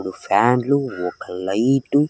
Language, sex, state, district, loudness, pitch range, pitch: Telugu, male, Andhra Pradesh, Sri Satya Sai, -20 LUFS, 95-140 Hz, 125 Hz